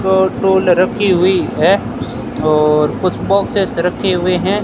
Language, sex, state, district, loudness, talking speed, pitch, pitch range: Hindi, male, Rajasthan, Bikaner, -14 LUFS, 140 wpm, 185 Hz, 180-195 Hz